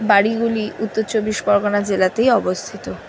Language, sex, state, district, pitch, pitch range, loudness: Bengali, female, West Bengal, North 24 Parganas, 215 Hz, 205-220 Hz, -18 LUFS